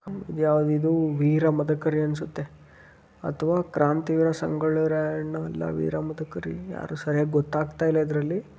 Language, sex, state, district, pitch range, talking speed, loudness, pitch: Kannada, male, Karnataka, Dharwad, 145-160 Hz, 120 wpm, -25 LUFS, 155 Hz